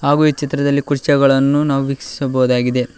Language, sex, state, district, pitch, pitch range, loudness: Kannada, male, Karnataka, Koppal, 140 Hz, 135-145 Hz, -16 LUFS